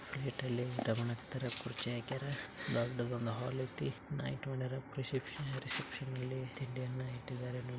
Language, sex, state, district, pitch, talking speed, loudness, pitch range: Kannada, male, Karnataka, Bijapur, 130 Hz, 75 wpm, -40 LUFS, 120-130 Hz